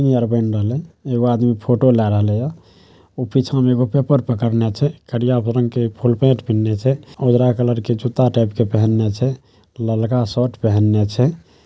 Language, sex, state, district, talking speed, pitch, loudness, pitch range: Maithili, male, Bihar, Saharsa, 125 wpm, 120 Hz, -18 LUFS, 115-130 Hz